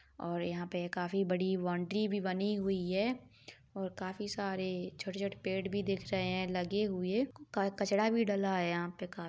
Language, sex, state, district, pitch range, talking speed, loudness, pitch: Hindi, female, Jharkhand, Sahebganj, 180-200 Hz, 180 wpm, -35 LUFS, 190 Hz